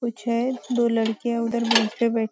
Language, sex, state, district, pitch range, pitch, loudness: Hindi, female, Maharashtra, Nagpur, 225-240 Hz, 235 Hz, -23 LUFS